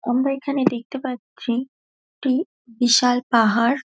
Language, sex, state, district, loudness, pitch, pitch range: Bengali, female, West Bengal, Dakshin Dinajpur, -21 LUFS, 250 Hz, 240-270 Hz